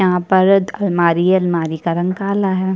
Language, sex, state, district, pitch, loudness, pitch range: Hindi, female, Chhattisgarh, Kabirdham, 185 Hz, -16 LUFS, 175-190 Hz